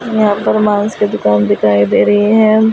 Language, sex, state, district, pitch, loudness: Hindi, female, Delhi, New Delhi, 205 Hz, -12 LUFS